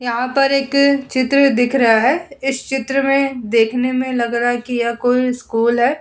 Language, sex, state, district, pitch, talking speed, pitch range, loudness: Hindi, female, Uttar Pradesh, Hamirpur, 255 Hz, 200 wpm, 240-275 Hz, -16 LUFS